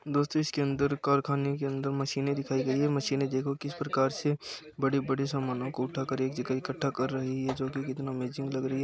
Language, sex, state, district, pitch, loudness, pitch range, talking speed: Hindi, male, Uttar Pradesh, Muzaffarnagar, 135 Hz, -31 LUFS, 130-140 Hz, 225 wpm